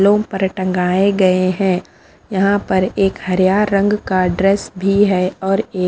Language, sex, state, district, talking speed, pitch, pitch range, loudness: Hindi, female, Punjab, Fazilka, 165 wpm, 190 Hz, 185-200 Hz, -16 LUFS